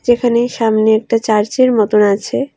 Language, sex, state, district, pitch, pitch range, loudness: Bengali, female, West Bengal, Alipurduar, 225 Hz, 215-240 Hz, -13 LUFS